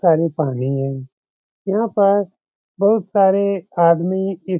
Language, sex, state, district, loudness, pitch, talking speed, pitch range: Hindi, male, Uttar Pradesh, Etah, -18 LUFS, 190 Hz, 130 wpm, 165-200 Hz